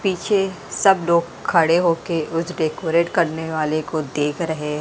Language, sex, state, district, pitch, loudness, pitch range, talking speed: Hindi, female, Maharashtra, Mumbai Suburban, 165 Hz, -20 LUFS, 155-175 Hz, 150 wpm